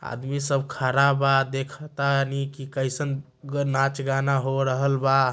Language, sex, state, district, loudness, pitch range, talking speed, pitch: Magahi, male, Bihar, Samastipur, -24 LUFS, 135-140 Hz, 135 wpm, 135 Hz